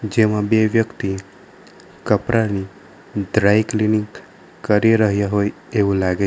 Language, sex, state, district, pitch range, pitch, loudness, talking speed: Gujarati, male, Gujarat, Valsad, 100-110 Hz, 105 Hz, -18 LUFS, 115 wpm